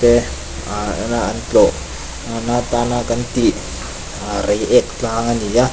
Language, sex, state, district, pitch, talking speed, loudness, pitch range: Mizo, male, Mizoram, Aizawl, 115 Hz, 115 wpm, -18 LUFS, 100-120 Hz